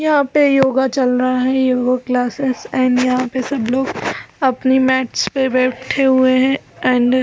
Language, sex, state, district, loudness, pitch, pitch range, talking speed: Hindi, female, Chhattisgarh, Balrampur, -16 LUFS, 260 Hz, 255-265 Hz, 175 wpm